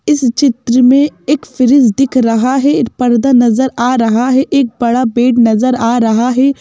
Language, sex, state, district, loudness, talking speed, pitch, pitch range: Hindi, female, Madhya Pradesh, Bhopal, -11 LUFS, 180 wpm, 250 Hz, 235-265 Hz